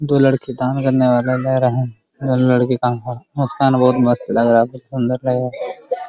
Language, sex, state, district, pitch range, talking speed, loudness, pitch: Hindi, male, Bihar, Araria, 125-130 Hz, 205 wpm, -17 LUFS, 125 Hz